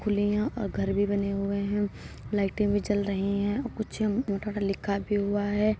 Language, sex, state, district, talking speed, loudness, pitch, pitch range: Hindi, female, Uttar Pradesh, Jyotiba Phule Nagar, 195 wpm, -28 LUFS, 205 Hz, 200-210 Hz